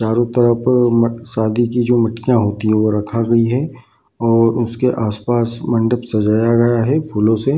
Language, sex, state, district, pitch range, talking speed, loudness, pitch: Hindi, male, Bihar, Bhagalpur, 110-120 Hz, 175 wpm, -16 LUFS, 115 Hz